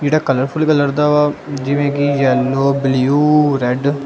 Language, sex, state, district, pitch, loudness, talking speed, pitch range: Punjabi, male, Punjab, Kapurthala, 140 Hz, -15 LUFS, 165 wpm, 135-150 Hz